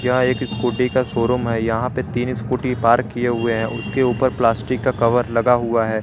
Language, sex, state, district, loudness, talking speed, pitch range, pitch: Hindi, male, Jharkhand, Garhwa, -19 LUFS, 220 wpm, 115-125 Hz, 120 Hz